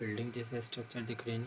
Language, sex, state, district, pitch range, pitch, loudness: Hindi, male, Bihar, Darbhanga, 115-120 Hz, 120 Hz, -40 LUFS